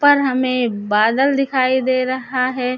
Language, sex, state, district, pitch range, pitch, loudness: Hindi, female, Chhattisgarh, Raipur, 250-265 Hz, 255 Hz, -17 LUFS